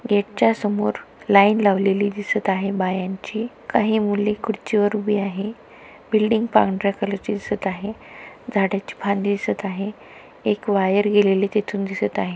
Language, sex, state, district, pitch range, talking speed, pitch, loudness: Marathi, female, Maharashtra, Pune, 195-210 Hz, 140 wpm, 205 Hz, -21 LUFS